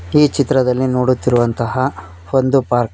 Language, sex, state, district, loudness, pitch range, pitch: Kannada, male, Karnataka, Koppal, -16 LUFS, 120-135 Hz, 125 Hz